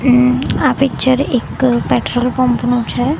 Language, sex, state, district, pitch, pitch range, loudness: Gujarati, female, Gujarat, Gandhinagar, 250 Hz, 245-260 Hz, -14 LUFS